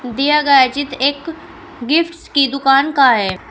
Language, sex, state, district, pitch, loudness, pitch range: Hindi, female, Uttar Pradesh, Shamli, 275 Hz, -14 LUFS, 265-300 Hz